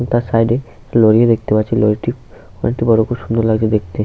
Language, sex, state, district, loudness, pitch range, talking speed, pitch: Bengali, male, West Bengal, Paschim Medinipur, -15 LUFS, 110-120 Hz, 235 wpm, 115 Hz